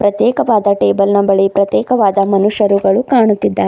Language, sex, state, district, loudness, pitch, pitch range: Kannada, female, Karnataka, Bidar, -12 LUFS, 200 Hz, 195-215 Hz